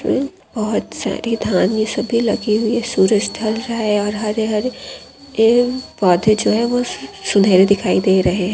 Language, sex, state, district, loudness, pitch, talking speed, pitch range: Hindi, female, Rajasthan, Churu, -17 LUFS, 220 Hz, 170 wpm, 205-235 Hz